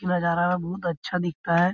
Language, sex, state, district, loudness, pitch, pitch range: Hindi, male, Bihar, Jahanabad, -26 LUFS, 175 Hz, 170-180 Hz